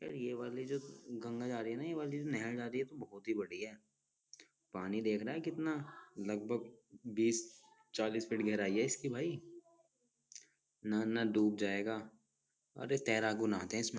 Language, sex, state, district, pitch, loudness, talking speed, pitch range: Hindi, male, Uttar Pradesh, Jyotiba Phule Nagar, 115 Hz, -39 LUFS, 175 wpm, 105-135 Hz